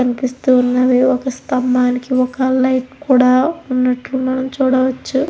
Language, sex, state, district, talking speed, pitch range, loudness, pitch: Telugu, female, Andhra Pradesh, Anantapur, 115 wpm, 250-260 Hz, -15 LUFS, 260 Hz